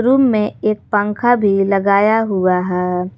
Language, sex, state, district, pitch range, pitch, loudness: Hindi, female, Jharkhand, Garhwa, 190-215 Hz, 205 Hz, -15 LUFS